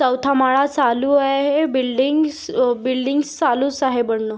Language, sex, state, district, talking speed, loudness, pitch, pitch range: Hindi, female, Maharashtra, Aurangabad, 135 wpm, -18 LUFS, 270 Hz, 255-290 Hz